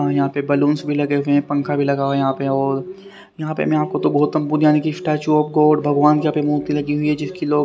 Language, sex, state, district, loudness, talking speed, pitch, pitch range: Hindi, male, Haryana, Rohtak, -18 LUFS, 280 wpm, 145 Hz, 140-150 Hz